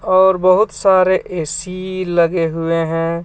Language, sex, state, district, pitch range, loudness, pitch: Hindi, male, Jharkhand, Ranchi, 165-185 Hz, -16 LUFS, 180 Hz